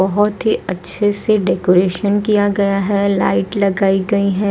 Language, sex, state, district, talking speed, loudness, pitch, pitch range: Hindi, female, Odisha, Sambalpur, 160 wpm, -16 LUFS, 200 Hz, 190-205 Hz